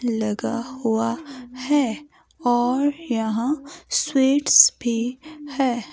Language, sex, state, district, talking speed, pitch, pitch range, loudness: Hindi, female, Himachal Pradesh, Shimla, 80 wpm, 255 Hz, 235-290 Hz, -21 LUFS